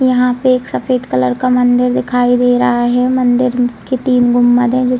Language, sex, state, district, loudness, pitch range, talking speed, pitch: Hindi, female, Bihar, Saran, -13 LUFS, 245-255 Hz, 215 wpm, 250 Hz